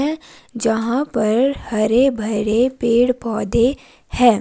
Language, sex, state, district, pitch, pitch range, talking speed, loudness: Hindi, female, Himachal Pradesh, Shimla, 235 Hz, 220-260 Hz, 110 wpm, -18 LUFS